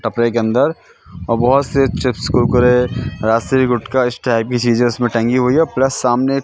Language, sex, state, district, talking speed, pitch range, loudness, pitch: Hindi, male, Madhya Pradesh, Katni, 185 wpm, 115-130 Hz, -15 LUFS, 125 Hz